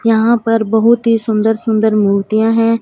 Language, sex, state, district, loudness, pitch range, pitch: Hindi, female, Punjab, Fazilka, -13 LUFS, 220-230 Hz, 225 Hz